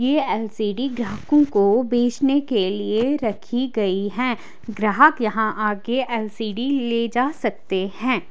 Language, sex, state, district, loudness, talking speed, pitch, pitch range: Hindi, female, Haryana, Charkhi Dadri, -21 LUFS, 130 wpm, 230 Hz, 210-255 Hz